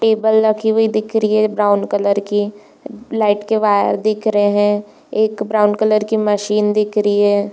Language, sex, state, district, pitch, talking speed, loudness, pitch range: Hindi, female, Chhattisgarh, Bilaspur, 210 Hz, 175 wpm, -16 LUFS, 205-220 Hz